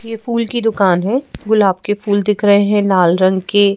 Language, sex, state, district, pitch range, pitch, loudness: Hindi, female, Madhya Pradesh, Bhopal, 190-225 Hz, 205 Hz, -14 LUFS